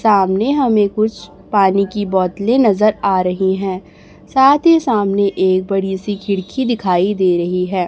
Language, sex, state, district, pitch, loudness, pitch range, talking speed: Hindi, male, Chhattisgarh, Raipur, 200 Hz, -15 LUFS, 190-215 Hz, 160 wpm